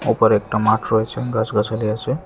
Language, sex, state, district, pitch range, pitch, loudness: Bengali, male, Tripura, West Tripura, 110-115 Hz, 110 Hz, -19 LUFS